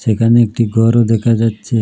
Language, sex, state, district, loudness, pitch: Bengali, male, Assam, Hailakandi, -13 LUFS, 115 Hz